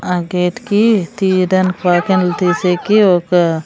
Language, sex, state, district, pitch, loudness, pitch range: Telugu, female, Andhra Pradesh, Sri Satya Sai, 180 Hz, -14 LUFS, 180-195 Hz